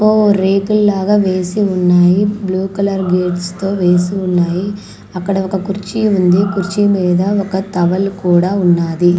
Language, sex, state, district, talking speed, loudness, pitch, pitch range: Telugu, female, Andhra Pradesh, Manyam, 135 wpm, -14 LUFS, 190 Hz, 180-200 Hz